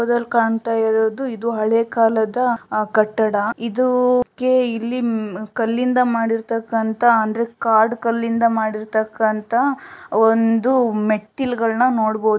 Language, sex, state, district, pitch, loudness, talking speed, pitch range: Kannada, female, Karnataka, Shimoga, 230 Hz, -19 LUFS, 100 wpm, 220-240 Hz